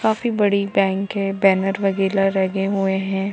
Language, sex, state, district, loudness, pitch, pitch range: Hindi, female, Jharkhand, Jamtara, -19 LUFS, 195 Hz, 195-200 Hz